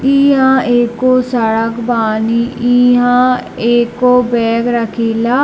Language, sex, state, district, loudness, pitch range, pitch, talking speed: Hindi, male, Bihar, Darbhanga, -12 LUFS, 230-250 Hz, 240 Hz, 100 wpm